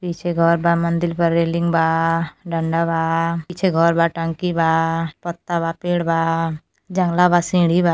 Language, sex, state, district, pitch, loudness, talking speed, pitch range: Bhojpuri, female, Uttar Pradesh, Deoria, 170 Hz, -19 LUFS, 165 wpm, 165-175 Hz